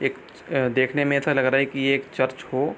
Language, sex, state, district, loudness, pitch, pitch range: Hindi, male, Bihar, East Champaran, -23 LUFS, 135 Hz, 130-140 Hz